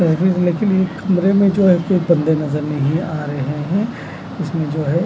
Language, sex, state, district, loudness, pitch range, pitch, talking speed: Hindi, male, Punjab, Kapurthala, -17 LUFS, 150-190 Hz, 175 Hz, 165 wpm